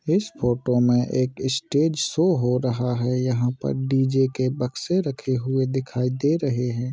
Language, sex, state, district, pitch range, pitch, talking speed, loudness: Hindi, male, Maharashtra, Nagpur, 125-140 Hz, 130 Hz, 180 wpm, -23 LUFS